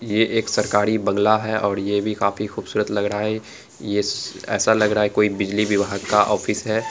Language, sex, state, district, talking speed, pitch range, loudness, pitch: Angika, female, Bihar, Araria, 215 wpm, 100-110 Hz, -21 LUFS, 105 Hz